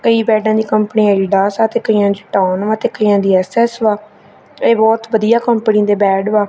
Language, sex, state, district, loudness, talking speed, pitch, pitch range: Punjabi, female, Punjab, Kapurthala, -14 LUFS, 215 wpm, 215 Hz, 200-225 Hz